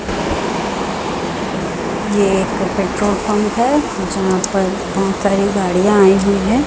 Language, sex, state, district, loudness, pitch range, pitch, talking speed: Hindi, female, Chhattisgarh, Raipur, -16 LUFS, 195-210 Hz, 200 Hz, 115 wpm